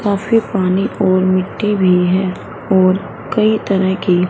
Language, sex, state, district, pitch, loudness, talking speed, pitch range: Hindi, female, Punjab, Fazilka, 190 Hz, -15 LUFS, 140 wpm, 185-205 Hz